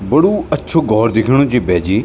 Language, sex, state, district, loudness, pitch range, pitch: Garhwali, male, Uttarakhand, Tehri Garhwal, -14 LUFS, 105-130 Hz, 110 Hz